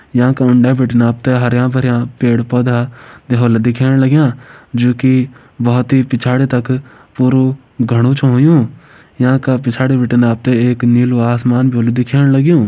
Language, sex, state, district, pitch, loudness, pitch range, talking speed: Garhwali, male, Uttarakhand, Uttarkashi, 125 Hz, -13 LUFS, 120-130 Hz, 160 wpm